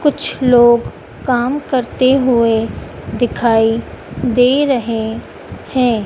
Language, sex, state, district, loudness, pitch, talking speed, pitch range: Hindi, female, Madhya Pradesh, Dhar, -14 LUFS, 245 Hz, 90 wpm, 230-260 Hz